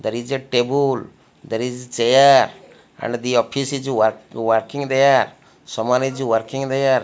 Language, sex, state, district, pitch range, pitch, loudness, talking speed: English, male, Odisha, Malkangiri, 115-135 Hz, 125 Hz, -19 LUFS, 155 wpm